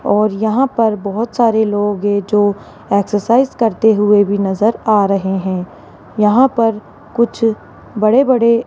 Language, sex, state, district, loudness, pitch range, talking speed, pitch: Hindi, female, Rajasthan, Jaipur, -14 LUFS, 205-230 Hz, 150 wpm, 215 Hz